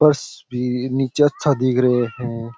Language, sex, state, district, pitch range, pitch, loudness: Rajasthani, male, Rajasthan, Churu, 125-140 Hz, 125 Hz, -20 LUFS